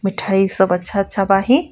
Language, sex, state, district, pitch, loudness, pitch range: Bhojpuri, female, Jharkhand, Palamu, 195 Hz, -16 LUFS, 195-215 Hz